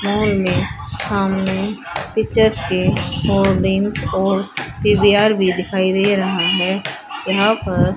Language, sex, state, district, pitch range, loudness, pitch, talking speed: Hindi, female, Haryana, Rohtak, 185-205 Hz, -17 LUFS, 195 Hz, 115 wpm